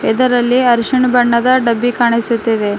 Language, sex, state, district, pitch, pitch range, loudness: Kannada, female, Karnataka, Bidar, 240 Hz, 235-250 Hz, -13 LUFS